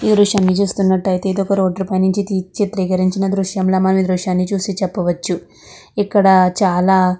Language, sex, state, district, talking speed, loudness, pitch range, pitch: Telugu, female, Andhra Pradesh, Guntur, 115 wpm, -16 LUFS, 185-195 Hz, 190 Hz